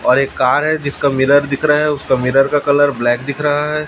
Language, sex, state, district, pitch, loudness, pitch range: Hindi, male, Chhattisgarh, Raipur, 145 Hz, -14 LUFS, 135-145 Hz